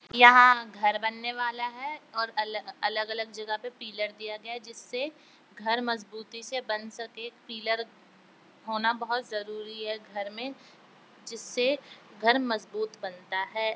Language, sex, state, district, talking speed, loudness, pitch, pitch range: Hindi, female, Bihar, Jamui, 135 wpm, -28 LUFS, 225 Hz, 215-240 Hz